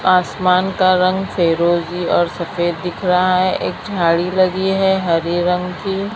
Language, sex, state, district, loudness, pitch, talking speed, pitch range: Hindi, female, Maharashtra, Mumbai Suburban, -17 LUFS, 180 Hz, 155 wpm, 175-185 Hz